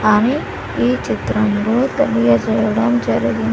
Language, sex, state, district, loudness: Telugu, female, Andhra Pradesh, Sri Satya Sai, -16 LUFS